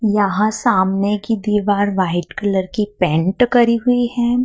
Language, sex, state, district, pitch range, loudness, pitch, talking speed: Hindi, female, Madhya Pradesh, Dhar, 190-235 Hz, -17 LUFS, 210 Hz, 150 wpm